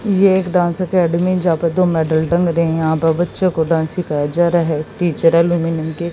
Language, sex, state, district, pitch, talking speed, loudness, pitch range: Hindi, female, Haryana, Jhajjar, 170 Hz, 225 wpm, -16 LUFS, 160-180 Hz